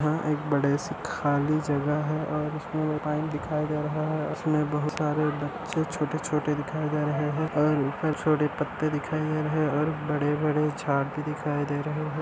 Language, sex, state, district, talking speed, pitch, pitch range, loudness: Hindi, male, Andhra Pradesh, Anantapur, 155 wpm, 150 Hz, 150-155 Hz, -27 LUFS